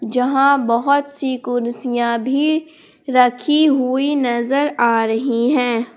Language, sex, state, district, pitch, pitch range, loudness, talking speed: Hindi, female, Jharkhand, Palamu, 255 Hz, 240-280 Hz, -17 LUFS, 110 wpm